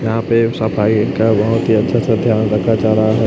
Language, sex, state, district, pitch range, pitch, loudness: Hindi, male, Chhattisgarh, Raipur, 110-115 Hz, 110 Hz, -14 LUFS